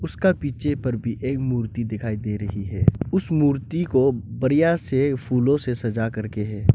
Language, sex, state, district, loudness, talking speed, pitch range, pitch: Hindi, male, Arunachal Pradesh, Lower Dibang Valley, -23 LUFS, 180 wpm, 115-140 Hz, 130 Hz